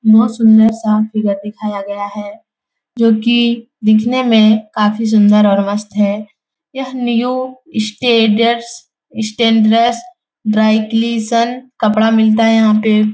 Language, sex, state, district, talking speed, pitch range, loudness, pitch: Hindi, female, Bihar, Jahanabad, 125 wpm, 215-235 Hz, -13 LUFS, 220 Hz